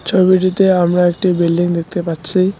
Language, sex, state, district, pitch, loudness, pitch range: Bengali, male, West Bengal, Cooch Behar, 180 Hz, -14 LUFS, 170-185 Hz